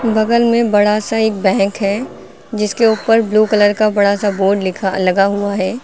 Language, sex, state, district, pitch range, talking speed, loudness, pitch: Hindi, female, Uttar Pradesh, Lucknow, 200-220 Hz, 195 wpm, -14 LUFS, 210 Hz